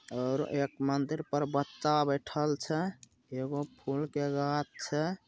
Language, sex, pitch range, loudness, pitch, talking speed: Bhojpuri, male, 140-150 Hz, -33 LUFS, 145 Hz, 135 wpm